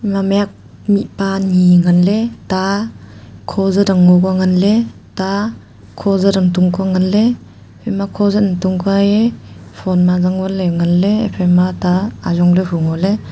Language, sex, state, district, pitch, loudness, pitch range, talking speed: Wancho, female, Arunachal Pradesh, Longding, 190 Hz, -14 LUFS, 180-200 Hz, 170 wpm